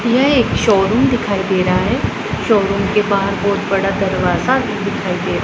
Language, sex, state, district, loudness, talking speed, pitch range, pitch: Hindi, female, Punjab, Pathankot, -16 LUFS, 165 wpm, 195-230 Hz, 200 Hz